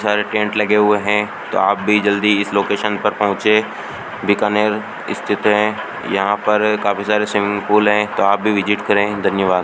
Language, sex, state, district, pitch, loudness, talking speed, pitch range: Hindi, male, Rajasthan, Bikaner, 105 Hz, -16 LUFS, 180 wpm, 100-105 Hz